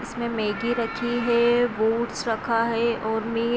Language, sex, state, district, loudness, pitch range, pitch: Hindi, female, Bihar, Sitamarhi, -24 LUFS, 225-235 Hz, 235 Hz